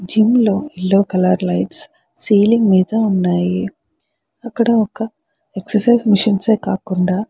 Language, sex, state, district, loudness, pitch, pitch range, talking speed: Telugu, female, Andhra Pradesh, Chittoor, -15 LUFS, 210 Hz, 185-230 Hz, 125 wpm